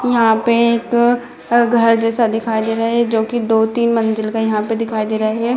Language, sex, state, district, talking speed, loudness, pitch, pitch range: Hindi, female, Bihar, Jamui, 215 wpm, -16 LUFS, 230 Hz, 220-235 Hz